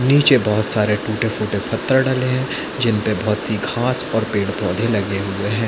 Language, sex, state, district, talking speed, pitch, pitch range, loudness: Hindi, male, Chhattisgarh, Bilaspur, 180 wpm, 110 Hz, 105-125 Hz, -19 LUFS